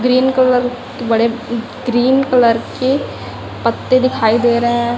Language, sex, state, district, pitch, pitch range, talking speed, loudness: Hindi, female, Chhattisgarh, Raipur, 245 Hz, 235-255 Hz, 145 wpm, -15 LUFS